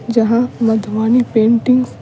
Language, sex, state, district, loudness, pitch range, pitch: Hindi, female, Bihar, Patna, -14 LUFS, 220-245 Hz, 230 Hz